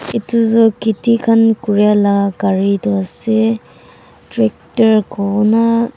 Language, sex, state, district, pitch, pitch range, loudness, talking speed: Nagamese, female, Nagaland, Dimapur, 220 Hz, 200-230 Hz, -14 LUFS, 130 wpm